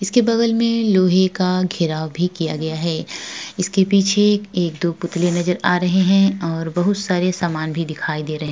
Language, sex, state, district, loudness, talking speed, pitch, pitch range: Hindi, female, Uttar Pradesh, Jalaun, -19 LUFS, 195 wpm, 180 Hz, 165-195 Hz